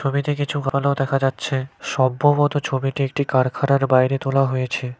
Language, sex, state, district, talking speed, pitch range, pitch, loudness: Bengali, male, West Bengal, Cooch Behar, 145 wpm, 130-140 Hz, 135 Hz, -20 LUFS